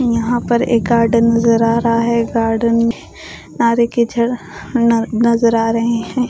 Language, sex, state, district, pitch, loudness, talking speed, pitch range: Hindi, female, Odisha, Khordha, 230 Hz, -15 LUFS, 125 wpm, 230-235 Hz